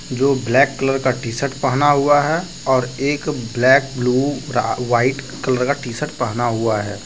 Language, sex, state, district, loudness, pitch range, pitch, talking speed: Hindi, male, Jharkhand, Deoghar, -18 LUFS, 125-140 Hz, 130 Hz, 160 wpm